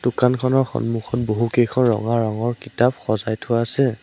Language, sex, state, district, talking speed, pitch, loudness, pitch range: Assamese, male, Assam, Sonitpur, 135 wpm, 120 Hz, -20 LUFS, 115-125 Hz